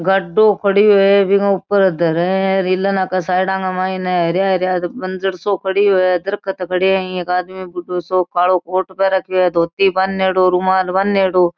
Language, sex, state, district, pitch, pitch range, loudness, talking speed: Marwari, female, Rajasthan, Nagaur, 185 Hz, 180-195 Hz, -16 LUFS, 145 wpm